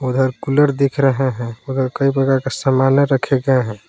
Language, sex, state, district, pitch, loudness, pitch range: Hindi, male, Jharkhand, Palamu, 135 Hz, -17 LUFS, 130-135 Hz